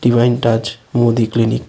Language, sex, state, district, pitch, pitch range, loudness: Bengali, male, Tripura, West Tripura, 115 Hz, 115-120 Hz, -15 LUFS